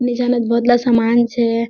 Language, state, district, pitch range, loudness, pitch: Surjapuri, Bihar, Kishanganj, 230-245 Hz, -15 LUFS, 235 Hz